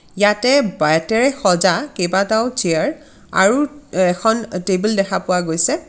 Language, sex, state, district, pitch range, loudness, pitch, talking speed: Assamese, female, Assam, Kamrup Metropolitan, 180-255 Hz, -17 LUFS, 205 Hz, 135 wpm